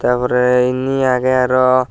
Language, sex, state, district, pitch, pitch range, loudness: Chakma, male, Tripura, Dhalai, 125 Hz, 125-130 Hz, -14 LUFS